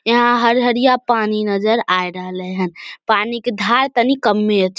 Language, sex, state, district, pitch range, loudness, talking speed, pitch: Maithili, female, Bihar, Samastipur, 200-240 Hz, -16 LUFS, 175 wpm, 225 Hz